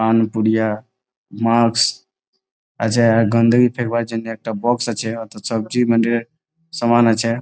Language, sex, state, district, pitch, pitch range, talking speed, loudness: Bengali, male, West Bengal, Malda, 115 Hz, 115-120 Hz, 95 wpm, -18 LUFS